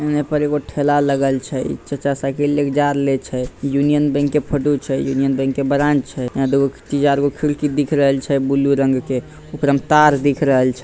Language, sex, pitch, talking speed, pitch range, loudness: Bhojpuri, male, 140 Hz, 220 wpm, 135-145 Hz, -18 LUFS